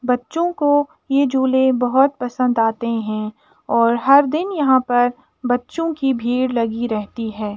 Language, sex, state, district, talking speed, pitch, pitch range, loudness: Hindi, female, Uttar Pradesh, Jalaun, 150 wpm, 250 Hz, 235-280 Hz, -18 LUFS